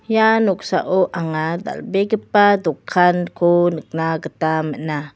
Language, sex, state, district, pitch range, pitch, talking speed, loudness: Garo, female, Meghalaya, West Garo Hills, 160-200 Hz, 175 Hz, 95 wpm, -18 LUFS